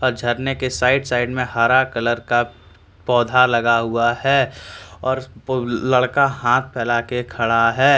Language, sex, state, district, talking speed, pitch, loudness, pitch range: Hindi, male, Jharkhand, Deoghar, 135 wpm, 120 Hz, -18 LUFS, 115-130 Hz